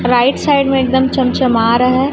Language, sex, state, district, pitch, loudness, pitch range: Hindi, female, Chhattisgarh, Raipur, 260 Hz, -13 LUFS, 245-270 Hz